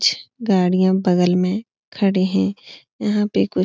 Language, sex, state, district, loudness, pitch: Hindi, female, Bihar, Supaul, -19 LUFS, 180 Hz